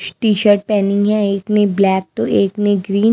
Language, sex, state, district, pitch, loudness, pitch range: Hindi, female, Himachal Pradesh, Shimla, 205 Hz, -15 LUFS, 200-210 Hz